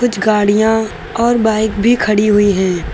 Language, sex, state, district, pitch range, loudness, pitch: Hindi, female, Uttar Pradesh, Lucknow, 205-225 Hz, -13 LUFS, 215 Hz